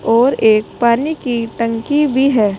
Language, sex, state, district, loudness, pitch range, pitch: Hindi, female, Uttar Pradesh, Saharanpur, -15 LUFS, 225-270 Hz, 235 Hz